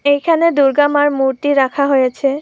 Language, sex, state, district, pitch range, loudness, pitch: Bengali, female, West Bengal, Purulia, 270-290 Hz, -14 LUFS, 285 Hz